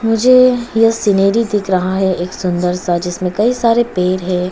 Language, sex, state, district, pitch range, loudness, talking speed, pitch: Hindi, female, Arunachal Pradesh, Papum Pare, 180-225 Hz, -14 LUFS, 170 wpm, 195 Hz